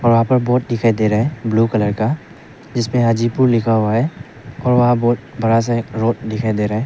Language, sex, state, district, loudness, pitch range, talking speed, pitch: Hindi, male, Arunachal Pradesh, Papum Pare, -17 LUFS, 110-120 Hz, 220 wpm, 115 Hz